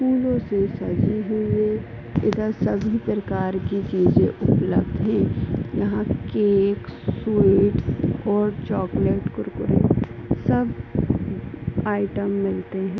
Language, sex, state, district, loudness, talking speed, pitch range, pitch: Hindi, female, Uttar Pradesh, Ghazipur, -22 LUFS, 100 wpm, 130-215 Hz, 200 Hz